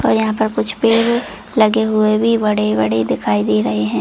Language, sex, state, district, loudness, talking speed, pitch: Hindi, female, Chhattisgarh, Bilaspur, -16 LUFS, 195 wpm, 215 Hz